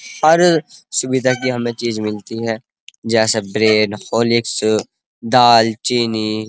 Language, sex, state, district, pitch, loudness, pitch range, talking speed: Hindi, male, Uttar Pradesh, Muzaffarnagar, 115 Hz, -16 LUFS, 110-125 Hz, 110 wpm